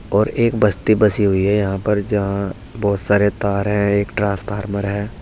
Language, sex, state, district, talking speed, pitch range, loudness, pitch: Hindi, male, Uttar Pradesh, Saharanpur, 185 wpm, 100-105 Hz, -18 LUFS, 100 Hz